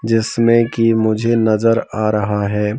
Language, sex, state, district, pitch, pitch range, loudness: Hindi, male, Madhya Pradesh, Bhopal, 110 Hz, 110-115 Hz, -15 LUFS